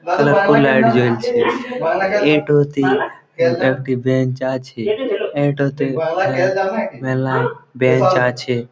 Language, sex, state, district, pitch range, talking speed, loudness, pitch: Bengali, male, West Bengal, Malda, 130-170 Hz, 95 wpm, -17 LUFS, 140 Hz